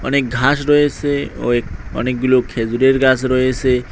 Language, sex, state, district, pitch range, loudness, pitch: Bengali, male, West Bengal, Cooch Behar, 120-135 Hz, -16 LUFS, 130 Hz